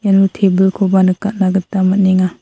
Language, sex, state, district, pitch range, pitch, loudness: Garo, female, Meghalaya, South Garo Hills, 185-195 Hz, 190 Hz, -13 LUFS